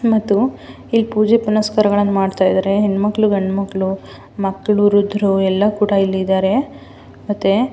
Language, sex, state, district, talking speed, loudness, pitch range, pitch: Kannada, female, Karnataka, Mysore, 125 wpm, -16 LUFS, 195-215 Hz, 205 Hz